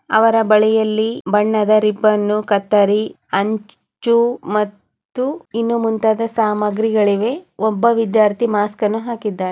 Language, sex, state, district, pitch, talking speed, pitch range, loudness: Kannada, female, Karnataka, Chamarajanagar, 215 Hz, 95 wpm, 210-230 Hz, -17 LUFS